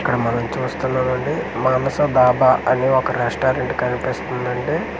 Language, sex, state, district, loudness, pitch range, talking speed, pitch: Telugu, male, Andhra Pradesh, Manyam, -19 LUFS, 125-130 Hz, 130 wpm, 130 Hz